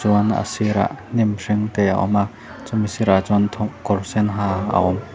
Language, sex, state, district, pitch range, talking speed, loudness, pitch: Mizo, male, Mizoram, Aizawl, 100-105 Hz, 200 wpm, -20 LUFS, 105 Hz